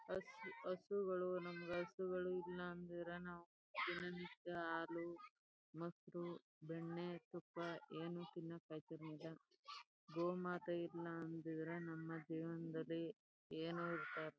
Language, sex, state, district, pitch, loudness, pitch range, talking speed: Kannada, female, Karnataka, Chamarajanagar, 170 Hz, -49 LUFS, 165-175 Hz, 110 wpm